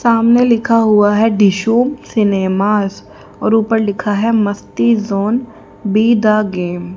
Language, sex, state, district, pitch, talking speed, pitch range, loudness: Hindi, female, Haryana, Jhajjar, 215 Hz, 140 wpm, 205-230 Hz, -14 LUFS